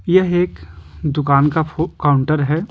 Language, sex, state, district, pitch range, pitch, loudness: Hindi, male, Bihar, Patna, 140-165 Hz, 150 Hz, -17 LUFS